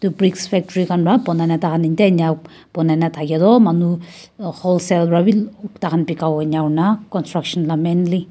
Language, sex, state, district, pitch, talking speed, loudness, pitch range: Nagamese, female, Nagaland, Kohima, 175 Hz, 215 wpm, -17 LUFS, 165-185 Hz